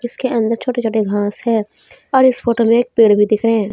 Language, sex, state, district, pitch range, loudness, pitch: Hindi, female, Jharkhand, Deoghar, 215-240 Hz, -15 LUFS, 230 Hz